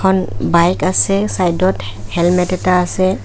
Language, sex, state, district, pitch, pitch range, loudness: Assamese, female, Assam, Kamrup Metropolitan, 180 Hz, 175-185 Hz, -15 LUFS